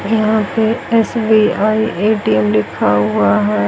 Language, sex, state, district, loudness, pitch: Hindi, female, Haryana, Charkhi Dadri, -14 LUFS, 215 Hz